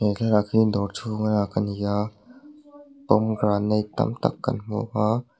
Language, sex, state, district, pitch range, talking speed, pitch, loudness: Mizo, male, Mizoram, Aizawl, 105-125 Hz, 165 wpm, 110 Hz, -24 LUFS